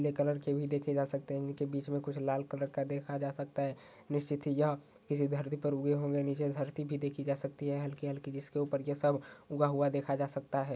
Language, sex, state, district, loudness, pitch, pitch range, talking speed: Hindi, male, Uttar Pradesh, Ghazipur, -35 LUFS, 140 Hz, 140-145 Hz, 250 wpm